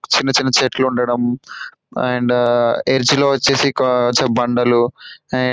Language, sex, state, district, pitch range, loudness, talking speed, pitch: Telugu, male, Telangana, Karimnagar, 120-130 Hz, -16 LUFS, 130 wpm, 125 Hz